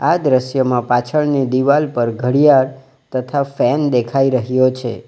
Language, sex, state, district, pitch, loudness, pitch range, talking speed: Gujarati, male, Gujarat, Valsad, 130 Hz, -16 LUFS, 125-140 Hz, 130 wpm